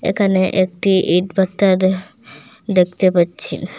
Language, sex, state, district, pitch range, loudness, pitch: Bengali, female, Assam, Hailakandi, 185-195 Hz, -16 LUFS, 185 Hz